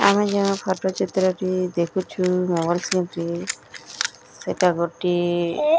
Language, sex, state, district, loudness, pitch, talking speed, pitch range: Odia, male, Odisha, Nuapada, -23 LUFS, 185 Hz, 95 wpm, 175-190 Hz